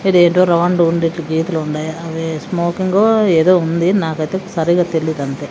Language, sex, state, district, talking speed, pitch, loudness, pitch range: Telugu, female, Andhra Pradesh, Sri Satya Sai, 130 wpm, 170 Hz, -15 LUFS, 160-180 Hz